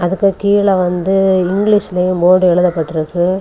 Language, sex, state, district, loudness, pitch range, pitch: Tamil, female, Tamil Nadu, Kanyakumari, -13 LUFS, 180-195 Hz, 185 Hz